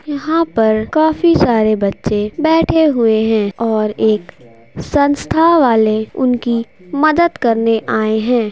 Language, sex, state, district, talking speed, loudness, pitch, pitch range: Hindi, female, Bihar, Darbhanga, 120 wpm, -14 LUFS, 230 Hz, 215-300 Hz